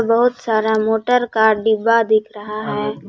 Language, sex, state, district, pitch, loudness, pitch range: Hindi, female, Jharkhand, Palamu, 220 Hz, -17 LUFS, 215-230 Hz